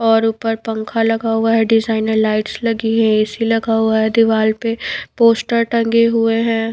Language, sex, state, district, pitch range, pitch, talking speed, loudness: Hindi, female, Bihar, Patna, 220-230 Hz, 225 Hz, 180 wpm, -16 LUFS